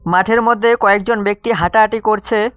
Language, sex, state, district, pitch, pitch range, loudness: Bengali, male, West Bengal, Cooch Behar, 220 Hz, 205-230 Hz, -14 LUFS